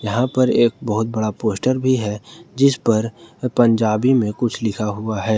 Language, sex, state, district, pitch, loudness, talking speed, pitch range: Hindi, male, Jharkhand, Ranchi, 115 Hz, -19 LUFS, 180 wpm, 110-125 Hz